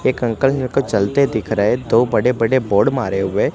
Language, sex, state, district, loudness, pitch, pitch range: Hindi, male, Gujarat, Gandhinagar, -17 LUFS, 125 Hz, 105-130 Hz